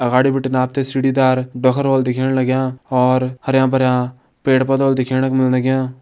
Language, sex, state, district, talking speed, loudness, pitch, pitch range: Hindi, male, Uttarakhand, Tehri Garhwal, 200 wpm, -17 LUFS, 130 Hz, 130-135 Hz